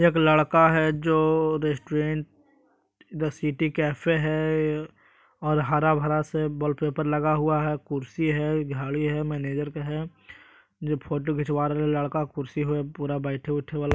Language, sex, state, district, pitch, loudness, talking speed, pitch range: Magahi, male, Bihar, Jahanabad, 150 Hz, -25 LUFS, 150 wpm, 150-155 Hz